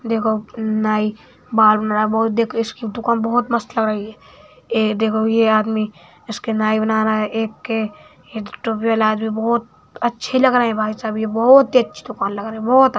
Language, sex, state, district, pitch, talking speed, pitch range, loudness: Hindi, male, Uttar Pradesh, Hamirpur, 220 Hz, 195 wpm, 215-230 Hz, -18 LUFS